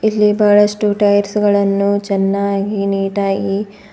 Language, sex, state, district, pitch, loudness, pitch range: Kannada, female, Karnataka, Bidar, 200 Hz, -15 LUFS, 200-205 Hz